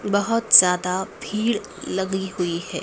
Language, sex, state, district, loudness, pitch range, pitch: Hindi, female, Madhya Pradesh, Dhar, -20 LUFS, 180-210 Hz, 190 Hz